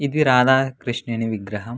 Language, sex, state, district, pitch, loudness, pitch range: Telugu, male, Andhra Pradesh, Anantapur, 125 Hz, -20 LUFS, 115-130 Hz